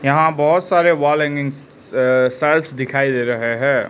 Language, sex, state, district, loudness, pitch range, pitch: Hindi, male, Arunachal Pradesh, Lower Dibang Valley, -17 LUFS, 130-150 Hz, 140 Hz